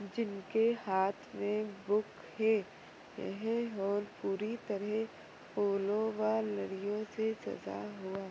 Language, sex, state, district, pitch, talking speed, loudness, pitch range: Hindi, female, Chhattisgarh, Rajnandgaon, 210 Hz, 110 wpm, -36 LUFS, 200-220 Hz